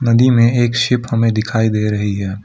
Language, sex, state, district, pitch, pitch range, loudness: Hindi, male, Assam, Kamrup Metropolitan, 115 Hz, 105-120 Hz, -15 LUFS